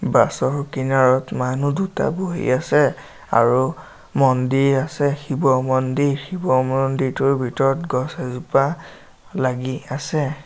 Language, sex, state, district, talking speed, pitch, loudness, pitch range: Assamese, male, Assam, Sonitpur, 105 wpm, 135 Hz, -20 LUFS, 130-145 Hz